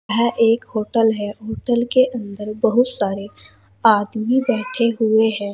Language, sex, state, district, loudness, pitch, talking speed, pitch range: Hindi, female, Uttar Pradesh, Saharanpur, -19 LUFS, 220 Hz, 140 wpm, 205-235 Hz